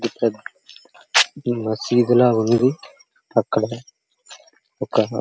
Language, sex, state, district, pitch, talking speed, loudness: Telugu, male, Andhra Pradesh, Srikakulam, 125 Hz, 105 wpm, -19 LUFS